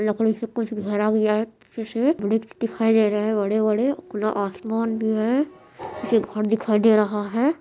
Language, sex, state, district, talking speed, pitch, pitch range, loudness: Hindi, female, Bihar, Madhepura, 190 wpm, 220 Hz, 210-230 Hz, -22 LUFS